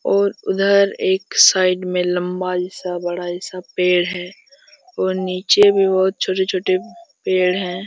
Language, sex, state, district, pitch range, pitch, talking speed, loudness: Hindi, male, Jharkhand, Jamtara, 180-195 Hz, 185 Hz, 135 wpm, -18 LUFS